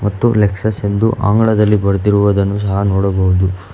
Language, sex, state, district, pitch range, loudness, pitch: Kannada, male, Karnataka, Bangalore, 100-105 Hz, -14 LUFS, 100 Hz